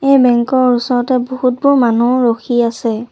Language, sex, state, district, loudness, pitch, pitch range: Assamese, female, Assam, Sonitpur, -13 LUFS, 250 Hz, 235-255 Hz